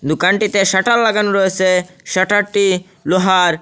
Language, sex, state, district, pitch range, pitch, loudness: Bengali, male, Assam, Hailakandi, 180-200 Hz, 190 Hz, -15 LUFS